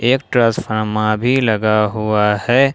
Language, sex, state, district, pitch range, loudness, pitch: Hindi, male, Jharkhand, Ranchi, 110-125 Hz, -16 LUFS, 110 Hz